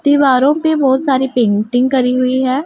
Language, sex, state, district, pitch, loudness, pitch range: Hindi, female, Punjab, Pathankot, 260 Hz, -13 LUFS, 255-280 Hz